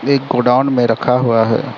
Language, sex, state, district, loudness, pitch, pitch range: Hindi, male, Arunachal Pradesh, Lower Dibang Valley, -14 LUFS, 125 Hz, 115-130 Hz